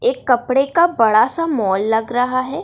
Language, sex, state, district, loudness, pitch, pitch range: Hindi, female, Bihar, Darbhanga, -16 LUFS, 255 Hz, 225-315 Hz